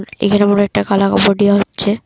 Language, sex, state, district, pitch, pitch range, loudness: Bengali, female, Assam, Kamrup Metropolitan, 200 Hz, 200-205 Hz, -13 LUFS